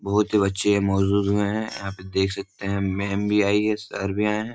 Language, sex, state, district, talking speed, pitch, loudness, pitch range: Hindi, male, Bihar, Supaul, 275 wpm, 100 Hz, -23 LUFS, 100-105 Hz